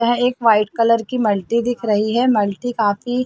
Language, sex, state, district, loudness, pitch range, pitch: Hindi, female, Chhattisgarh, Bastar, -18 LUFS, 210-245 Hz, 230 Hz